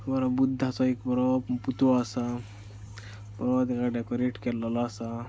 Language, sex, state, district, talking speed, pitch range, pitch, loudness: Konkani, male, Goa, North and South Goa, 125 wpm, 115-130 Hz, 120 Hz, -28 LUFS